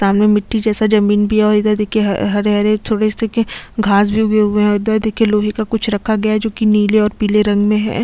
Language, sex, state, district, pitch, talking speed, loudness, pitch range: Hindi, female, Chhattisgarh, Sukma, 215 Hz, 270 wpm, -15 LUFS, 210-220 Hz